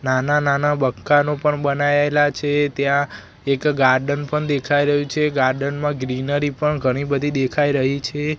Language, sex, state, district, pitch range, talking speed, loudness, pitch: Gujarati, male, Gujarat, Gandhinagar, 135-145 Hz, 155 wpm, -19 LUFS, 145 Hz